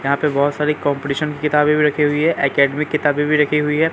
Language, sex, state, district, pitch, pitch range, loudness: Hindi, male, Bihar, Katihar, 150 Hz, 145-150 Hz, -17 LUFS